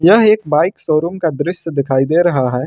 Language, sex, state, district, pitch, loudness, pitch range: Hindi, male, Jharkhand, Ranchi, 160 Hz, -15 LUFS, 135-175 Hz